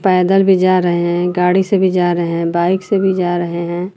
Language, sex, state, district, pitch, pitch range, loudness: Hindi, female, Uttar Pradesh, Lucknow, 180 Hz, 175-190 Hz, -14 LUFS